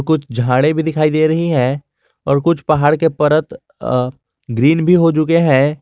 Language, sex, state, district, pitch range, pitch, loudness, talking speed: Hindi, male, Jharkhand, Garhwa, 135-160 Hz, 150 Hz, -14 LUFS, 185 wpm